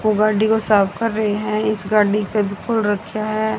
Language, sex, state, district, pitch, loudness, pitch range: Hindi, female, Haryana, Rohtak, 215 Hz, -19 LUFS, 210-220 Hz